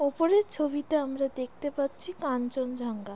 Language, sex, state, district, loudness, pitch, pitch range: Bengali, female, West Bengal, Jalpaiguri, -30 LUFS, 280 Hz, 255-305 Hz